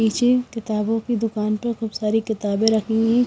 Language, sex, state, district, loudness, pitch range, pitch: Hindi, female, Himachal Pradesh, Shimla, -21 LUFS, 215-230 Hz, 225 Hz